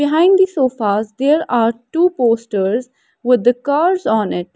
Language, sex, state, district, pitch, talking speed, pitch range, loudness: English, female, Haryana, Rohtak, 250 Hz, 160 wpm, 230-300 Hz, -16 LUFS